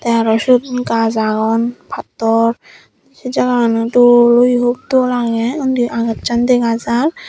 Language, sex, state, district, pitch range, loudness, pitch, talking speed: Chakma, female, Tripura, Dhalai, 230-250 Hz, -14 LUFS, 240 Hz, 140 wpm